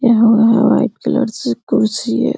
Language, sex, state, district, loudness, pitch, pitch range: Hindi, female, Uttar Pradesh, Hamirpur, -14 LUFS, 225 Hz, 215-240 Hz